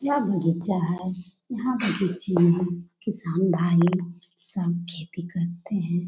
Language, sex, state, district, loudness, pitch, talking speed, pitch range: Hindi, female, Bihar, Jamui, -24 LUFS, 180 Hz, 120 wpm, 175-190 Hz